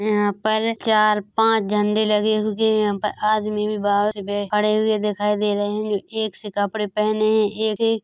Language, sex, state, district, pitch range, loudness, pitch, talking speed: Hindi, female, Chhattisgarh, Korba, 210-215 Hz, -21 LUFS, 210 Hz, 200 wpm